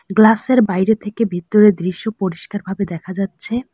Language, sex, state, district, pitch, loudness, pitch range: Bengali, female, West Bengal, Alipurduar, 205 Hz, -17 LUFS, 185-220 Hz